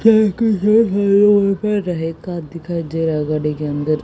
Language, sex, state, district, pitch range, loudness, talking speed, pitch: Hindi, female, Haryana, Jhajjar, 160-205 Hz, -17 LUFS, 120 wpm, 175 Hz